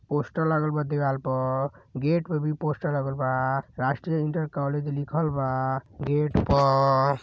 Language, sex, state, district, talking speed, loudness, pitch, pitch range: Bhojpuri, male, Uttar Pradesh, Gorakhpur, 150 wpm, -26 LUFS, 140 Hz, 135-150 Hz